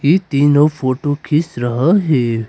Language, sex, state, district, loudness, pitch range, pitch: Hindi, male, Arunachal Pradesh, Papum Pare, -15 LUFS, 130-155 Hz, 145 Hz